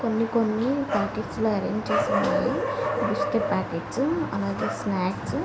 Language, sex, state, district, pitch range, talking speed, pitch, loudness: Telugu, female, Andhra Pradesh, Guntur, 200-275 Hz, 120 wpm, 220 Hz, -25 LUFS